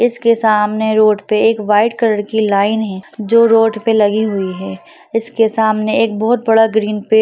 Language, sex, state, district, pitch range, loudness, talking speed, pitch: Hindi, female, Bihar, Jahanabad, 210-225 Hz, -14 LUFS, 200 wpm, 220 Hz